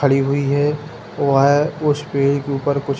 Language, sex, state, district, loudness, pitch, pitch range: Hindi, male, Bihar, Jahanabad, -18 LUFS, 140 Hz, 140-145 Hz